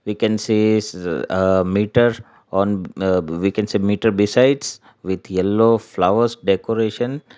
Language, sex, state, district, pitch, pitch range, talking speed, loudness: English, male, Gujarat, Valsad, 105 Hz, 95-115 Hz, 140 wpm, -19 LUFS